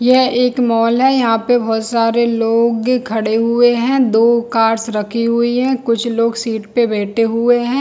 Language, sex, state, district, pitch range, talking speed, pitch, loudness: Hindi, female, Chhattisgarh, Bilaspur, 225-245 Hz, 185 wpm, 235 Hz, -14 LUFS